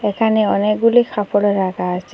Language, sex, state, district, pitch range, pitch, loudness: Bengali, female, Assam, Hailakandi, 195-220 Hz, 205 Hz, -16 LUFS